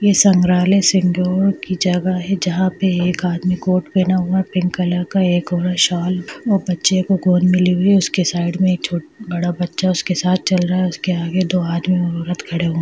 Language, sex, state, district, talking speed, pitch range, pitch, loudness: Hindi, female, Bihar, Gaya, 220 wpm, 180-185 Hz, 180 Hz, -17 LUFS